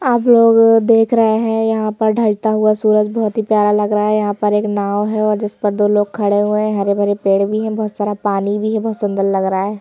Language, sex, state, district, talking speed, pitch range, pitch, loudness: Hindi, female, Madhya Pradesh, Bhopal, 255 wpm, 205-220 Hz, 210 Hz, -15 LUFS